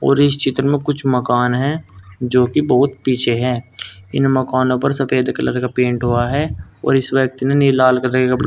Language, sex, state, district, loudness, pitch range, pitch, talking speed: Hindi, male, Uttar Pradesh, Saharanpur, -16 LUFS, 125-135 Hz, 130 Hz, 200 wpm